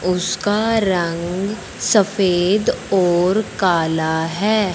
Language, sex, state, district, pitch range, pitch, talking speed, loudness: Hindi, male, Punjab, Fazilka, 175-205 Hz, 185 Hz, 75 wpm, -18 LUFS